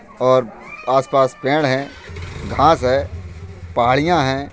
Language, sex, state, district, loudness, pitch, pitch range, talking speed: Hindi, male, Uttar Pradesh, Budaun, -17 LUFS, 130 Hz, 90-135 Hz, 105 wpm